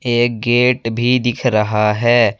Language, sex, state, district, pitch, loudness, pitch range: Hindi, male, Jharkhand, Ranchi, 120 Hz, -15 LUFS, 115-120 Hz